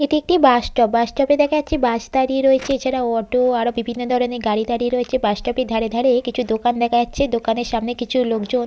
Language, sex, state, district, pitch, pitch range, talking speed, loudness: Bengali, female, West Bengal, Jhargram, 245 Hz, 235-260 Hz, 230 wpm, -19 LUFS